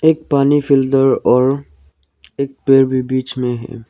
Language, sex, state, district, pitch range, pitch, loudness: Hindi, male, Arunachal Pradesh, Lower Dibang Valley, 120-140 Hz, 130 Hz, -15 LUFS